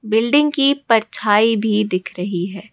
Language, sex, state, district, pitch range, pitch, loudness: Hindi, female, Rajasthan, Jaipur, 195-230 Hz, 215 Hz, -17 LUFS